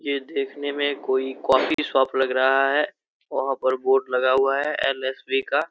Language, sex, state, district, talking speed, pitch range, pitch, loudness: Hindi, male, Bihar, Begusarai, 180 wpm, 130-140 Hz, 135 Hz, -22 LUFS